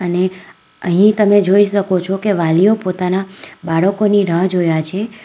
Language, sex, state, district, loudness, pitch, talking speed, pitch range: Gujarati, female, Gujarat, Valsad, -15 LUFS, 190 Hz, 150 wpm, 180-205 Hz